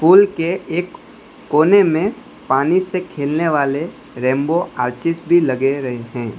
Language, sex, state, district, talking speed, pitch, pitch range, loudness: Hindi, male, Gujarat, Valsad, 140 wpm, 165 Hz, 135-180 Hz, -17 LUFS